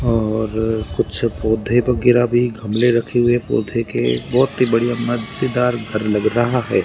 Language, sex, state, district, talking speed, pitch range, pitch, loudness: Hindi, male, Rajasthan, Barmer, 150 wpm, 110-120 Hz, 115 Hz, -18 LUFS